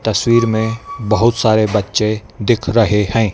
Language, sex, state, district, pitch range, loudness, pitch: Hindi, male, Madhya Pradesh, Dhar, 105-115 Hz, -15 LUFS, 110 Hz